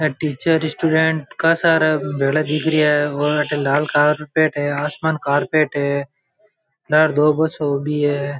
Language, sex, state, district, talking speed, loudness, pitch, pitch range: Marwari, male, Rajasthan, Nagaur, 145 wpm, -18 LUFS, 150 Hz, 145-160 Hz